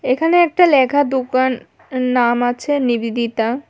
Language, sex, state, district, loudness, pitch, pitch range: Bengali, female, Tripura, West Tripura, -16 LUFS, 255 Hz, 245-285 Hz